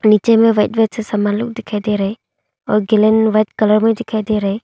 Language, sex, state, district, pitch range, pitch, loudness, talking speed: Hindi, female, Arunachal Pradesh, Longding, 210-225 Hz, 215 Hz, -15 LUFS, 245 wpm